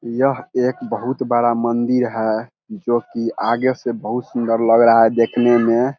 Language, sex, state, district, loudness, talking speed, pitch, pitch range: Hindi, male, Bihar, Vaishali, -18 LUFS, 170 wpm, 120 Hz, 115-125 Hz